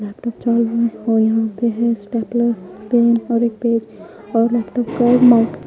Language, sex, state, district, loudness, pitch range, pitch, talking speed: Hindi, female, Haryana, Charkhi Dadri, -17 LUFS, 225-235 Hz, 235 Hz, 170 wpm